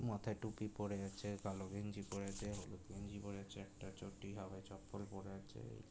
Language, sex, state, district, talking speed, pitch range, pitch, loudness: Bengali, male, West Bengal, Jalpaiguri, 195 wpm, 95-105 Hz, 100 Hz, -49 LUFS